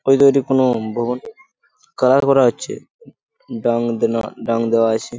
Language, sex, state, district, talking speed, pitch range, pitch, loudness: Bengali, male, West Bengal, Purulia, 115 wpm, 115-135 Hz, 120 Hz, -17 LUFS